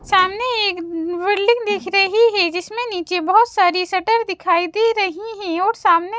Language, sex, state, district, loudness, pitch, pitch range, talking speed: Hindi, female, Chhattisgarh, Raipur, -18 LUFS, 395 Hz, 360-445 Hz, 165 wpm